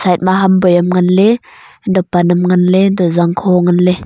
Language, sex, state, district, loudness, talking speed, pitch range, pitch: Wancho, female, Arunachal Pradesh, Longding, -11 LUFS, 205 wpm, 175-185 Hz, 180 Hz